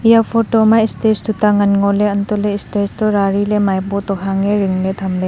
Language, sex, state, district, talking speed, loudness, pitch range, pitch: Wancho, female, Arunachal Pradesh, Longding, 180 wpm, -15 LUFS, 195-215 Hz, 205 Hz